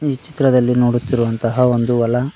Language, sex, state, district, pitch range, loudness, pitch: Kannada, male, Karnataka, Koppal, 120-130 Hz, -16 LUFS, 125 Hz